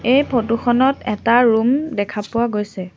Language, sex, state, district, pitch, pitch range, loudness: Assamese, female, Assam, Sonitpur, 230 Hz, 210-245 Hz, -17 LUFS